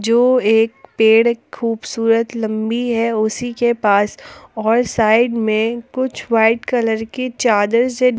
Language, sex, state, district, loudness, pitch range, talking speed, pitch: Hindi, female, Jharkhand, Palamu, -16 LUFS, 220-240 Hz, 130 wpm, 230 Hz